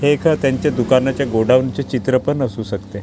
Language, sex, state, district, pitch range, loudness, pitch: Marathi, male, Maharashtra, Gondia, 120-140 Hz, -17 LUFS, 130 Hz